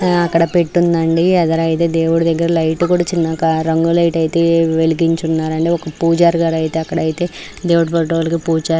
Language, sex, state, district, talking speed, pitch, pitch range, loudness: Telugu, female, Andhra Pradesh, Anantapur, 155 wpm, 165 Hz, 160-170 Hz, -15 LUFS